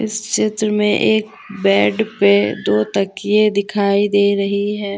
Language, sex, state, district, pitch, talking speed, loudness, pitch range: Hindi, female, Jharkhand, Deoghar, 205 Hz, 145 wpm, -16 LUFS, 200-215 Hz